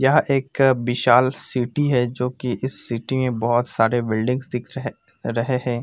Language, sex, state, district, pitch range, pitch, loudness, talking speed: Hindi, male, Jharkhand, Sahebganj, 120-130 Hz, 125 Hz, -21 LUFS, 175 wpm